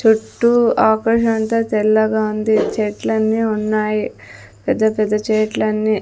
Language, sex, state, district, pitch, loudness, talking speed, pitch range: Telugu, female, Andhra Pradesh, Sri Satya Sai, 215 Hz, -17 LUFS, 90 wpm, 215-220 Hz